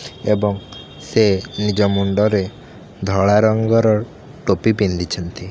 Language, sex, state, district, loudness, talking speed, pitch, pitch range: Odia, male, Odisha, Khordha, -18 LUFS, 85 wpm, 105 Hz, 95-110 Hz